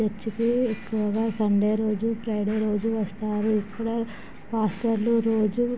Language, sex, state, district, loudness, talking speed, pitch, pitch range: Telugu, female, Andhra Pradesh, Chittoor, -25 LUFS, 115 wpm, 220 Hz, 210-225 Hz